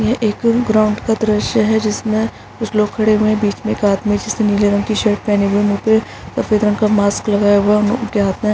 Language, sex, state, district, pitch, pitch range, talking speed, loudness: Hindi, female, Bihar, Araria, 210 Hz, 205-220 Hz, 260 wpm, -15 LUFS